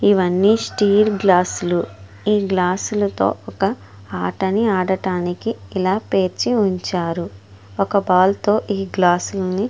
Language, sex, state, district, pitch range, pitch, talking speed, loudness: Telugu, female, Andhra Pradesh, Guntur, 175-205 Hz, 190 Hz, 105 wpm, -19 LUFS